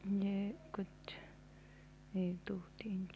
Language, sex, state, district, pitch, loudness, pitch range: Hindi, female, Rajasthan, Churu, 195 Hz, -43 LUFS, 185-200 Hz